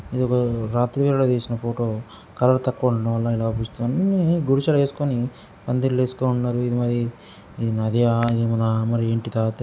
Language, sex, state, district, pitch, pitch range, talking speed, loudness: Telugu, male, Telangana, Karimnagar, 120 Hz, 115-130 Hz, 125 wpm, -22 LUFS